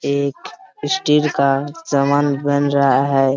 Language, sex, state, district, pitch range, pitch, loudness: Hindi, male, Jharkhand, Sahebganj, 140-145 Hz, 140 Hz, -17 LUFS